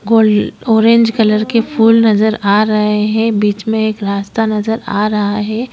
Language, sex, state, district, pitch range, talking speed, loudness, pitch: Hindi, female, Maharashtra, Chandrapur, 210-225 Hz, 180 wpm, -13 LUFS, 215 Hz